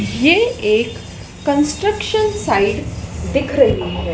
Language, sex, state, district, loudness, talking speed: Hindi, female, Madhya Pradesh, Dhar, -17 LUFS, 100 wpm